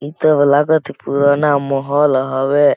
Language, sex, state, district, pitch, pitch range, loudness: Awadhi, male, Chhattisgarh, Balrampur, 145 Hz, 140-145 Hz, -15 LUFS